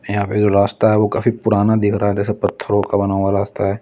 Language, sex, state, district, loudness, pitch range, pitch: Hindi, male, Delhi, New Delhi, -17 LUFS, 100-105 Hz, 100 Hz